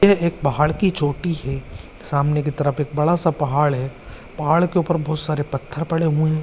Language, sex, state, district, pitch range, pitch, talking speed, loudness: Hindi, male, Jharkhand, Jamtara, 145-165 Hz, 150 Hz, 215 wpm, -20 LUFS